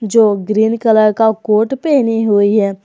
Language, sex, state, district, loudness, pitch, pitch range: Hindi, female, Jharkhand, Garhwa, -13 LUFS, 220 Hz, 210-225 Hz